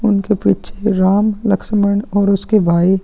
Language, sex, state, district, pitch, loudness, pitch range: Hindi, male, Chhattisgarh, Kabirdham, 200 Hz, -15 LUFS, 195-210 Hz